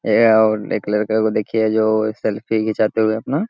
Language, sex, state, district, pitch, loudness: Hindi, male, Bihar, Sitamarhi, 110 Hz, -18 LUFS